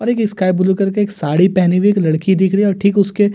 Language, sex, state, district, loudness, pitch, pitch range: Hindi, male, Delhi, New Delhi, -14 LUFS, 195 Hz, 185-205 Hz